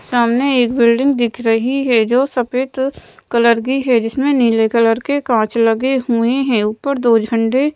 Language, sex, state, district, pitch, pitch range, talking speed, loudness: Hindi, female, Madhya Pradesh, Bhopal, 240 Hz, 230-265 Hz, 170 wpm, -15 LUFS